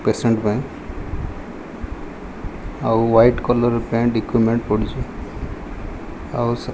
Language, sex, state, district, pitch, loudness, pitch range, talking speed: Odia, male, Odisha, Malkangiri, 115 Hz, -20 LUFS, 105-120 Hz, 105 wpm